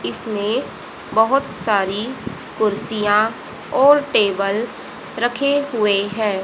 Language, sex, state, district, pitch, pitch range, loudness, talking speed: Hindi, female, Haryana, Jhajjar, 215 Hz, 205-240 Hz, -19 LUFS, 85 wpm